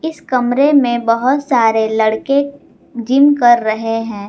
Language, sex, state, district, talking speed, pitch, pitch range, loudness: Hindi, female, Jharkhand, Garhwa, 140 wpm, 240 Hz, 225-280 Hz, -14 LUFS